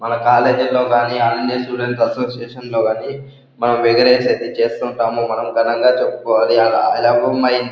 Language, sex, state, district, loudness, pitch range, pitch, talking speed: Telugu, male, Andhra Pradesh, Anantapur, -16 LUFS, 115-125 Hz, 120 Hz, 115 wpm